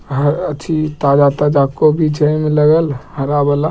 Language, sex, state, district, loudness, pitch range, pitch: Hindi, male, Bihar, Begusarai, -14 LUFS, 140-155 Hz, 150 Hz